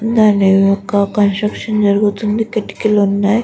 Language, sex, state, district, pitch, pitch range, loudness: Telugu, female, Andhra Pradesh, Guntur, 210 Hz, 200-215 Hz, -14 LUFS